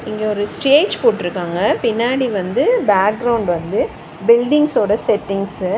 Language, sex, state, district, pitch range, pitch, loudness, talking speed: Tamil, female, Tamil Nadu, Chennai, 195-255 Hz, 215 Hz, -16 LUFS, 125 wpm